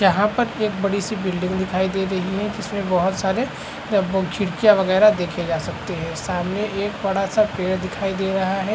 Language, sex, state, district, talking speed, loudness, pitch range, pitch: Hindi, male, Bihar, Araria, 190 wpm, -21 LUFS, 185-205 Hz, 195 Hz